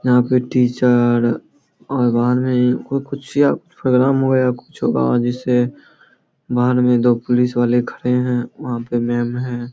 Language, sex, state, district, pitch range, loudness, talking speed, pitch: Hindi, male, Bihar, Samastipur, 120-125 Hz, -17 LUFS, 140 wpm, 125 Hz